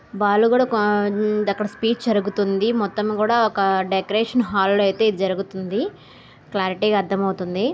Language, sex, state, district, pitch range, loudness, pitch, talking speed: Telugu, female, Telangana, Karimnagar, 195-220 Hz, -20 LUFS, 205 Hz, 130 wpm